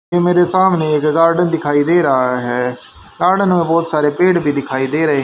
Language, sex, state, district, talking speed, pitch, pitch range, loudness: Hindi, male, Haryana, Charkhi Dadri, 205 wpm, 160 Hz, 140-175 Hz, -14 LUFS